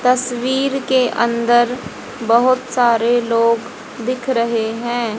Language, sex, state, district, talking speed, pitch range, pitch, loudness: Hindi, female, Haryana, Jhajjar, 105 wpm, 235-255 Hz, 240 Hz, -17 LUFS